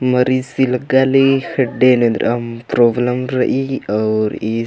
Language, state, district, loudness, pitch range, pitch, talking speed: Kurukh, Chhattisgarh, Jashpur, -15 LUFS, 115-130 Hz, 125 Hz, 100 wpm